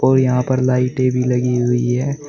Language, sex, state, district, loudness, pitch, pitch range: Hindi, male, Uttar Pradesh, Shamli, -17 LUFS, 125 Hz, 125-130 Hz